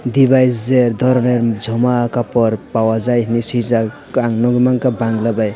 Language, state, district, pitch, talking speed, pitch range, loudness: Kokborok, Tripura, West Tripura, 120 Hz, 140 wpm, 115-125 Hz, -15 LUFS